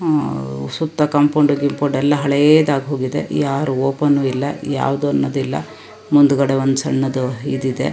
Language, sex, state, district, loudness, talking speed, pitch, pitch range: Kannada, female, Karnataka, Shimoga, -17 LUFS, 130 wpm, 140 Hz, 135-145 Hz